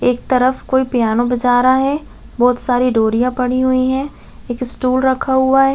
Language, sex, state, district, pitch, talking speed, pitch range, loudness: Hindi, female, Chhattisgarh, Raigarh, 255 Hz, 200 wpm, 245-260 Hz, -15 LUFS